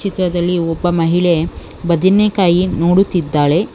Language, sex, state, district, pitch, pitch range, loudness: Kannada, female, Karnataka, Bangalore, 175 Hz, 170-185 Hz, -14 LUFS